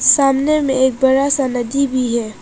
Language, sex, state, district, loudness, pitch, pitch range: Hindi, female, Arunachal Pradesh, Papum Pare, -15 LUFS, 265 Hz, 255-275 Hz